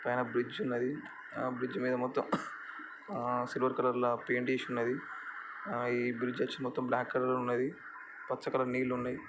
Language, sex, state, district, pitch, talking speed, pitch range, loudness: Telugu, male, Andhra Pradesh, Chittoor, 125 Hz, 140 wpm, 120-130 Hz, -35 LUFS